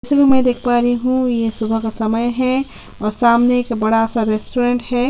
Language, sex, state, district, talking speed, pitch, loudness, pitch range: Hindi, female, Chhattisgarh, Sukma, 175 wpm, 240 Hz, -17 LUFS, 225-250 Hz